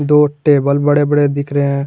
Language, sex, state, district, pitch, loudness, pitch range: Hindi, male, Jharkhand, Garhwa, 145 Hz, -14 LUFS, 140-145 Hz